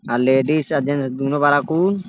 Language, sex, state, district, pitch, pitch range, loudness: Bhojpuri, male, Uttar Pradesh, Deoria, 145 Hz, 135-155 Hz, -18 LUFS